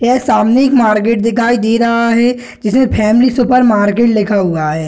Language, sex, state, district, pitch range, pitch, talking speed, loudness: Hindi, male, Bihar, Gaya, 215-245 Hz, 230 Hz, 170 wpm, -11 LUFS